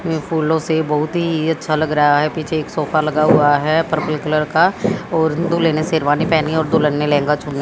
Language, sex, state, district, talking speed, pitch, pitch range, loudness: Hindi, female, Haryana, Jhajjar, 230 wpm, 155 Hz, 150-160 Hz, -17 LUFS